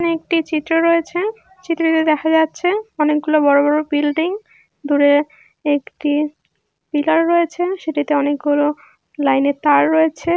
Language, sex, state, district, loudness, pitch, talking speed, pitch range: Bengali, female, West Bengal, Malda, -17 LUFS, 315 Hz, 115 wpm, 295-335 Hz